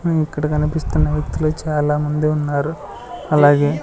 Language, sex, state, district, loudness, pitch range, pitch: Telugu, male, Andhra Pradesh, Sri Satya Sai, -18 LUFS, 145-155 Hz, 150 Hz